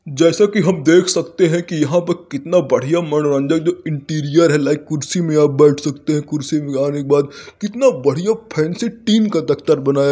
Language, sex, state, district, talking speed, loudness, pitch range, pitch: Hindi, male, Uttar Pradesh, Varanasi, 225 wpm, -16 LUFS, 145-175 Hz, 155 Hz